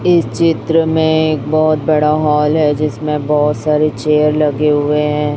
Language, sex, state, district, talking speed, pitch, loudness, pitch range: Hindi, female, Chhattisgarh, Raipur, 180 wpm, 150 Hz, -14 LUFS, 150-155 Hz